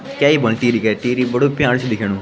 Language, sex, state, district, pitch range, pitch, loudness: Garhwali, male, Uttarakhand, Tehri Garhwal, 115-140 Hz, 125 Hz, -16 LUFS